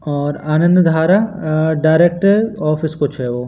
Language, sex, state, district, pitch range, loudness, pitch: Hindi, male, Madhya Pradesh, Katni, 150-180 Hz, -15 LUFS, 160 Hz